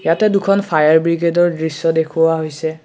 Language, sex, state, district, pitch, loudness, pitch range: Assamese, male, Assam, Kamrup Metropolitan, 165 Hz, -15 LUFS, 160-175 Hz